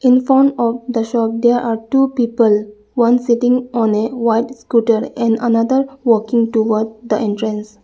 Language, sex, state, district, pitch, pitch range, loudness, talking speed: English, female, Arunachal Pradesh, Lower Dibang Valley, 230 Hz, 225-245 Hz, -16 LUFS, 155 wpm